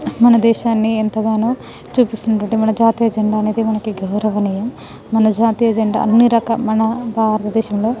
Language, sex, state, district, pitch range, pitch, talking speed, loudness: Telugu, female, Telangana, Nalgonda, 215-230 Hz, 220 Hz, 150 wpm, -16 LUFS